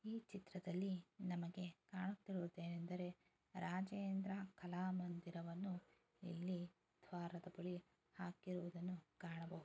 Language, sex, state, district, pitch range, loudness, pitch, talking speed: Kannada, female, Karnataka, Mysore, 175-190 Hz, -50 LUFS, 180 Hz, 75 wpm